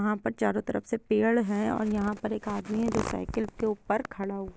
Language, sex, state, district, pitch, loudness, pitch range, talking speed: Hindi, female, Bihar, Gopalganj, 215 Hz, -29 LUFS, 210-225 Hz, 260 wpm